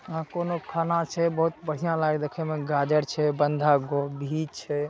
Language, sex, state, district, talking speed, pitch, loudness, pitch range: Maithili, male, Bihar, Saharsa, 170 wpm, 155 Hz, -26 LUFS, 150-165 Hz